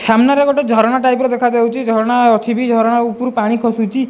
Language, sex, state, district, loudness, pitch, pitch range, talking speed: Odia, male, Odisha, Khordha, -14 LUFS, 235 Hz, 225-250 Hz, 190 wpm